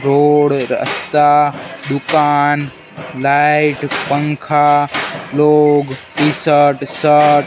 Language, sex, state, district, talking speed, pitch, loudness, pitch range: Hindi, male, Gujarat, Gandhinagar, 70 wpm, 145 Hz, -14 LUFS, 140-150 Hz